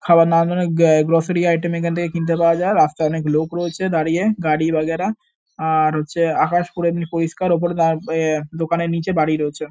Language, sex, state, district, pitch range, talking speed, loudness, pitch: Bengali, male, West Bengal, North 24 Parganas, 160-175 Hz, 190 wpm, -18 LUFS, 165 Hz